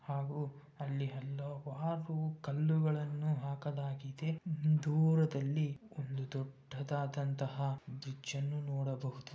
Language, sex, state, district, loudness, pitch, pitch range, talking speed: Kannada, male, Karnataka, Bellary, -38 LUFS, 140 Hz, 140-150 Hz, 65 wpm